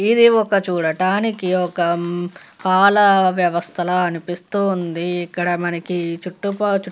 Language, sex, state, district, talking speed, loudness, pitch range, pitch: Telugu, female, Andhra Pradesh, Visakhapatnam, 115 wpm, -18 LUFS, 175-200 Hz, 180 Hz